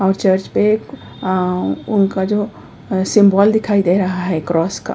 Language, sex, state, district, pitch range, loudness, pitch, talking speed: Hindi, female, Uttar Pradesh, Hamirpur, 185-205 Hz, -16 LUFS, 190 Hz, 155 wpm